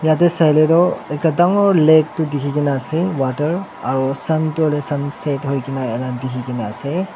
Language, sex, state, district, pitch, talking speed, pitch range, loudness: Nagamese, male, Nagaland, Dimapur, 150 Hz, 170 wpm, 135-160 Hz, -17 LUFS